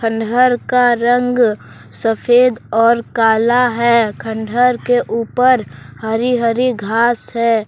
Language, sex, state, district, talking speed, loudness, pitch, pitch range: Hindi, male, Jharkhand, Deoghar, 110 wpm, -14 LUFS, 235 Hz, 225-245 Hz